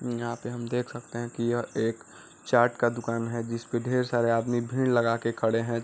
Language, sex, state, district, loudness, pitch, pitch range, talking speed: Hindi, male, Uttar Pradesh, Varanasi, -28 LUFS, 120 Hz, 115-120 Hz, 225 wpm